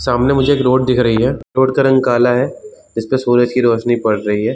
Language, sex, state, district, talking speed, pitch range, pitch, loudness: Hindi, male, Chhattisgarh, Bilaspur, 265 wpm, 120-130 Hz, 125 Hz, -14 LUFS